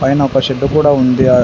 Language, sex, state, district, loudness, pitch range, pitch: Telugu, male, Telangana, Adilabad, -12 LUFS, 130-140 Hz, 135 Hz